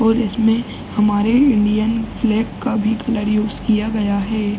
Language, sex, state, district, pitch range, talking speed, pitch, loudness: Hindi, male, Uttar Pradesh, Ghazipur, 210-225 Hz, 170 wpm, 220 Hz, -18 LUFS